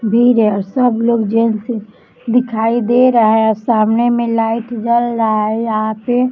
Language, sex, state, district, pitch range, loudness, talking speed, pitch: Hindi, female, Maharashtra, Chandrapur, 220-240 Hz, -14 LUFS, 190 wpm, 230 Hz